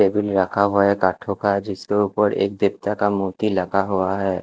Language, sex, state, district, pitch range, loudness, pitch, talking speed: Hindi, male, Delhi, New Delhi, 95-100 Hz, -20 LUFS, 100 Hz, 205 wpm